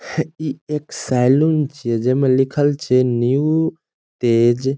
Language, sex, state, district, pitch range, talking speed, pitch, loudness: Maithili, male, Bihar, Saharsa, 125-150 Hz, 140 wpm, 135 Hz, -18 LUFS